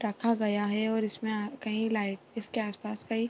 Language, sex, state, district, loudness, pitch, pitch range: Hindi, female, Bihar, East Champaran, -31 LUFS, 215 Hz, 210-225 Hz